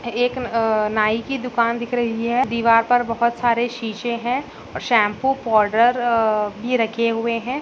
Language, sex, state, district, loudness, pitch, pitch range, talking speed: Hindi, female, Maharashtra, Solapur, -20 LUFS, 235 Hz, 225-245 Hz, 155 wpm